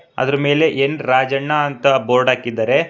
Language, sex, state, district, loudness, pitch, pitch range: Kannada, male, Karnataka, Bangalore, -16 LUFS, 135 Hz, 130-145 Hz